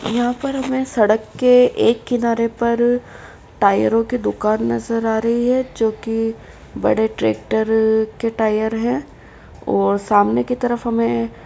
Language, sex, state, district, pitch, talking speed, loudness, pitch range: Hindi, female, Uttar Pradesh, Etah, 225 Hz, 140 wpm, -18 LUFS, 215-240 Hz